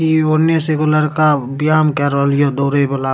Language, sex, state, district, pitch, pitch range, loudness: Maithili, male, Bihar, Supaul, 150 Hz, 140-155 Hz, -15 LUFS